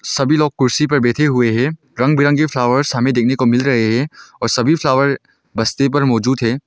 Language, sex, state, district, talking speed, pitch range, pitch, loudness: Hindi, male, Arunachal Pradesh, Longding, 205 wpm, 120-145 Hz, 130 Hz, -15 LUFS